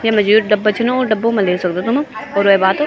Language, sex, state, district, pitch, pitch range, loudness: Garhwali, female, Uttarakhand, Tehri Garhwal, 215 Hz, 200-230 Hz, -15 LUFS